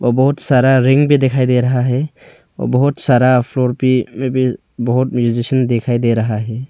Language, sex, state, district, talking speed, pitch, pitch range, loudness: Hindi, male, Arunachal Pradesh, Longding, 180 wpm, 125 Hz, 120-130 Hz, -15 LUFS